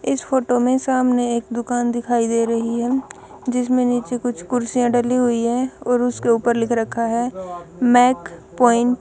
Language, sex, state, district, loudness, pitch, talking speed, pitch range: Hindi, female, Punjab, Kapurthala, -19 LUFS, 245 Hz, 175 wpm, 235-250 Hz